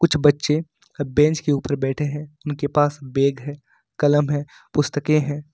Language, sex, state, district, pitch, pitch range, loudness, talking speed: Hindi, male, Jharkhand, Ranchi, 145 Hz, 145-150 Hz, -21 LUFS, 165 wpm